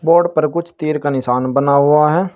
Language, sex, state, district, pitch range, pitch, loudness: Hindi, male, Uttar Pradesh, Saharanpur, 140-170 Hz, 150 Hz, -15 LUFS